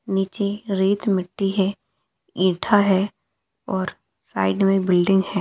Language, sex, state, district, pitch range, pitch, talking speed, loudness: Hindi, female, Rajasthan, Nagaur, 190-200 Hz, 195 Hz, 120 wpm, -21 LUFS